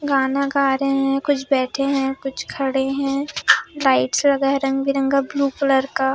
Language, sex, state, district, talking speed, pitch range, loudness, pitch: Hindi, female, Maharashtra, Aurangabad, 165 wpm, 270-275 Hz, -19 LUFS, 275 Hz